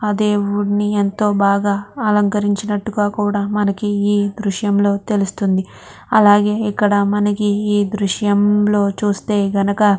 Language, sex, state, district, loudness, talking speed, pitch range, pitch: Telugu, female, Andhra Pradesh, Chittoor, -17 LUFS, 100 wpm, 200-210 Hz, 205 Hz